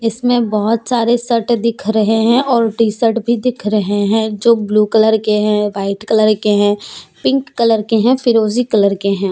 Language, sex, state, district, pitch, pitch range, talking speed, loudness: Hindi, female, Jharkhand, Deoghar, 220 Hz, 210-235 Hz, 200 wpm, -14 LUFS